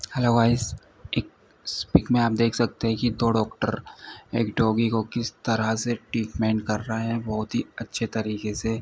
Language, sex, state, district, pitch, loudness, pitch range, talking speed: Hindi, male, Uttar Pradesh, Ghazipur, 115 Hz, -25 LUFS, 110-115 Hz, 185 wpm